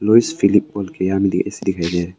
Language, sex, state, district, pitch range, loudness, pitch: Hindi, male, Arunachal Pradesh, Papum Pare, 90-105 Hz, -18 LUFS, 95 Hz